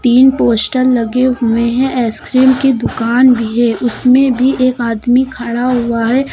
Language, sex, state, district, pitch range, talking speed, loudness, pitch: Hindi, female, Uttar Pradesh, Lucknow, 235-260 Hz, 160 wpm, -12 LUFS, 250 Hz